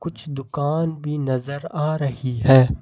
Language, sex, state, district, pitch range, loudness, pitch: Hindi, male, Jharkhand, Ranchi, 130-155 Hz, -22 LUFS, 145 Hz